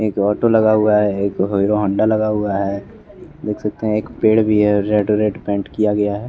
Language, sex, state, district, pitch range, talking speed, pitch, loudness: Hindi, male, Bihar, West Champaran, 100-110 Hz, 230 wpm, 105 Hz, -17 LUFS